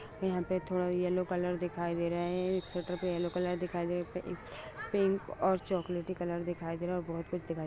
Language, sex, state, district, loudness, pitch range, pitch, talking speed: Hindi, female, Bihar, Jahanabad, -35 LUFS, 175-180 Hz, 180 Hz, 250 wpm